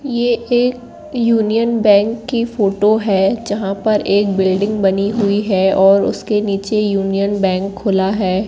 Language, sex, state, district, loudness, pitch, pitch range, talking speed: Hindi, female, Madhya Pradesh, Katni, -15 LUFS, 205 Hz, 195-225 Hz, 150 wpm